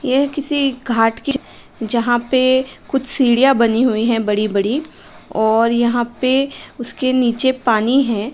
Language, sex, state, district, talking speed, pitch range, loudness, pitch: Hindi, female, Uttar Pradesh, Varanasi, 145 wpm, 230-270 Hz, -16 LUFS, 250 Hz